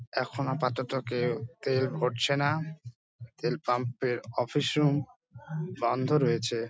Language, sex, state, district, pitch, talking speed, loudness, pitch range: Bengali, male, West Bengal, Dakshin Dinajpur, 130 Hz, 125 wpm, -30 LUFS, 120-145 Hz